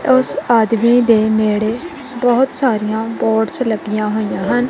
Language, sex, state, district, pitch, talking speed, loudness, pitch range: Punjabi, female, Punjab, Kapurthala, 225 Hz, 125 wpm, -15 LUFS, 215-250 Hz